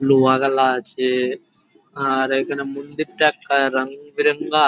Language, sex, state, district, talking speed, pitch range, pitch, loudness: Bengali, male, West Bengal, Jhargram, 100 wpm, 130-145 Hz, 135 Hz, -19 LUFS